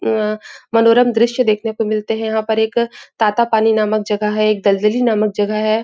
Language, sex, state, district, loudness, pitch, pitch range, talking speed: Hindi, female, Chhattisgarh, Raigarh, -16 LUFS, 220 Hz, 215-230 Hz, 195 wpm